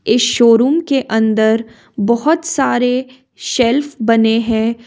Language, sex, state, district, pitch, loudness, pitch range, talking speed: Hindi, female, Jharkhand, Ranchi, 235 Hz, -14 LUFS, 225-260 Hz, 110 wpm